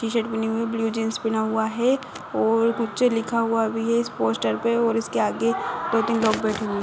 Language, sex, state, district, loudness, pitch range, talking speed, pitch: Hindi, female, Uttar Pradesh, Budaun, -23 LUFS, 220-230 Hz, 235 wpm, 225 Hz